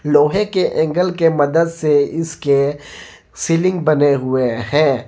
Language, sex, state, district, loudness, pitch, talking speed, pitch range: Hindi, male, Jharkhand, Garhwa, -16 LUFS, 155 Hz, 130 wpm, 140-165 Hz